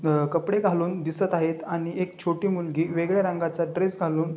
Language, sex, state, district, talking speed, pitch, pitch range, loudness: Marathi, male, Maharashtra, Chandrapur, 180 wpm, 170 Hz, 165-185 Hz, -26 LUFS